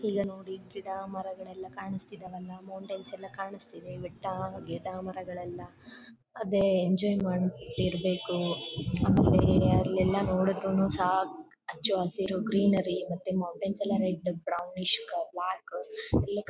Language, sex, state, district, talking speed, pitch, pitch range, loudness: Kannada, female, Karnataka, Bellary, 100 wpm, 190 Hz, 180-195 Hz, -30 LUFS